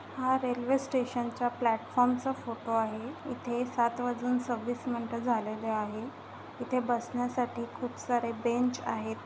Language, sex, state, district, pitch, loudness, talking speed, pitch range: Marathi, female, Maharashtra, Nagpur, 245 Hz, -32 LUFS, 130 wpm, 235-250 Hz